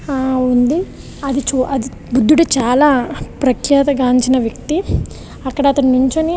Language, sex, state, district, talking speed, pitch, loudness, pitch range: Telugu, female, Andhra Pradesh, Visakhapatnam, 120 wpm, 265 Hz, -15 LUFS, 255-285 Hz